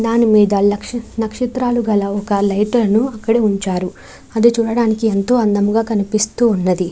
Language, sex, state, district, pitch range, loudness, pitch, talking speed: Telugu, female, Andhra Pradesh, Chittoor, 205-230 Hz, -16 LUFS, 220 Hz, 120 wpm